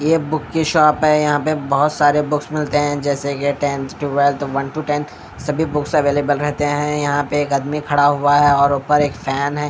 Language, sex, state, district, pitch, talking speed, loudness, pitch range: Hindi, male, Bihar, Katihar, 145 Hz, 225 wpm, -17 LUFS, 140-150 Hz